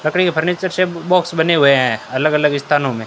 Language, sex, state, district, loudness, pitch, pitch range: Hindi, male, Rajasthan, Bikaner, -16 LUFS, 155 Hz, 140-180 Hz